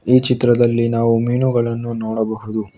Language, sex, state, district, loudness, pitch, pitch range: Kannada, male, Karnataka, Bangalore, -17 LUFS, 115 Hz, 110-120 Hz